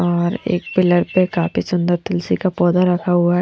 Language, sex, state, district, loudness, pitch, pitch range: Hindi, female, Haryana, Rohtak, -17 LUFS, 175 Hz, 175-180 Hz